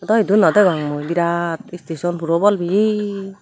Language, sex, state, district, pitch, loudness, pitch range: Chakma, female, Tripura, Unakoti, 175 Hz, -17 LUFS, 170-205 Hz